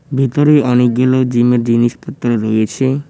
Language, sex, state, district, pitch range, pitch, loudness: Bengali, male, West Bengal, Cooch Behar, 120-135 Hz, 125 Hz, -13 LUFS